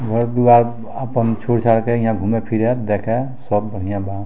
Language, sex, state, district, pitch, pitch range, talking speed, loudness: Bhojpuri, male, Bihar, Muzaffarpur, 115 Hz, 105-120 Hz, 155 wpm, -18 LUFS